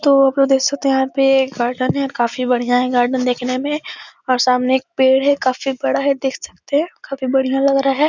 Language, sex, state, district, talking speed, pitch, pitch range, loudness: Hindi, female, Uttar Pradesh, Etah, 230 wpm, 265 Hz, 255-275 Hz, -17 LUFS